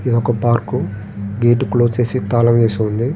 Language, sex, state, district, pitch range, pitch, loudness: Telugu, male, Andhra Pradesh, Srikakulam, 110-120 Hz, 120 Hz, -16 LUFS